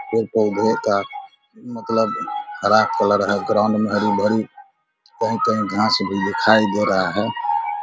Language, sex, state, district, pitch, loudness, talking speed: Hindi, male, Bihar, Vaishali, 110 Hz, -19 LUFS, 120 wpm